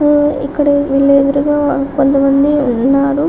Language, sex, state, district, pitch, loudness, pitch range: Telugu, female, Telangana, Karimnagar, 280 Hz, -12 LUFS, 275-290 Hz